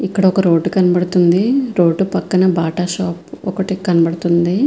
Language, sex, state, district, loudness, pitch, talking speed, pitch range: Telugu, female, Andhra Pradesh, Visakhapatnam, -15 LUFS, 180 Hz, 140 wpm, 170-190 Hz